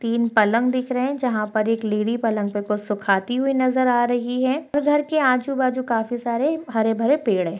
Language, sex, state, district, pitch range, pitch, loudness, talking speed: Hindi, female, Bihar, Jahanabad, 220-260 Hz, 240 Hz, -21 LUFS, 205 wpm